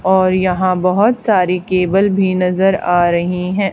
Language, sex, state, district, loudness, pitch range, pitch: Hindi, female, Haryana, Charkhi Dadri, -14 LUFS, 180-195 Hz, 185 Hz